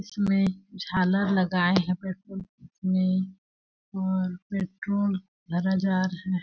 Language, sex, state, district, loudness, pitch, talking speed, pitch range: Hindi, female, Chhattisgarh, Balrampur, -27 LUFS, 190 Hz, 110 wpm, 185-195 Hz